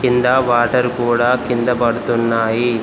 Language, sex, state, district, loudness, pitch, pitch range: Telugu, male, Telangana, Komaram Bheem, -16 LUFS, 120 Hz, 120-125 Hz